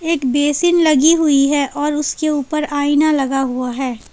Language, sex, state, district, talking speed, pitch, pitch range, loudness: Hindi, female, Jharkhand, Palamu, 175 wpm, 290 Hz, 275-310 Hz, -16 LUFS